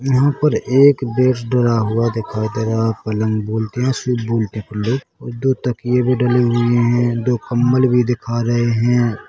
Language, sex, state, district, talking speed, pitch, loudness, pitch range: Hindi, male, Chhattisgarh, Bilaspur, 130 wpm, 120 Hz, -17 LUFS, 115-125 Hz